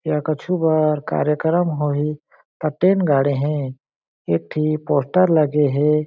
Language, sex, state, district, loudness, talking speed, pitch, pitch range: Chhattisgarhi, male, Chhattisgarh, Jashpur, -19 LUFS, 130 wpm, 150 Hz, 145-155 Hz